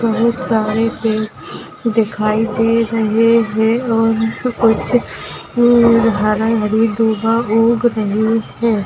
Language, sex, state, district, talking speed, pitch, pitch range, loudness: Hindi, female, Maharashtra, Dhule, 110 wpm, 225 Hz, 220-230 Hz, -15 LUFS